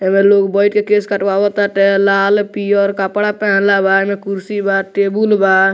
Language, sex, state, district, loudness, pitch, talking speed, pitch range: Bhojpuri, male, Bihar, Muzaffarpur, -14 LUFS, 200 Hz, 180 wpm, 195-205 Hz